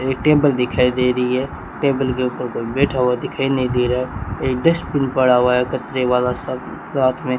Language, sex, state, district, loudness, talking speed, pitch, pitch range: Hindi, male, Rajasthan, Bikaner, -19 LUFS, 225 wpm, 125 Hz, 125-135 Hz